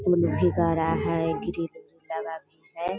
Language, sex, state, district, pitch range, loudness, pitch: Hindi, female, Bihar, Sitamarhi, 160-175 Hz, -26 LUFS, 165 Hz